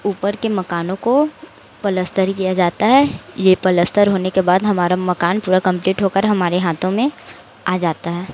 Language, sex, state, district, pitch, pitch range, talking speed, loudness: Hindi, female, Chhattisgarh, Raipur, 190 Hz, 180-205 Hz, 180 wpm, -17 LUFS